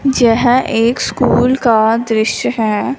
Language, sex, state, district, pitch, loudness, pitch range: Hindi, female, Punjab, Fazilka, 230 Hz, -13 LUFS, 220-250 Hz